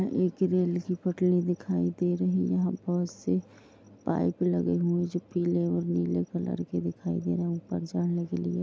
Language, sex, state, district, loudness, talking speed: Hindi, female, Jharkhand, Jamtara, -29 LUFS, 195 wpm